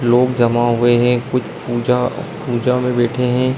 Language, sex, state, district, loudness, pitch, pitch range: Hindi, male, Uttar Pradesh, Hamirpur, -16 LUFS, 125 Hz, 120-125 Hz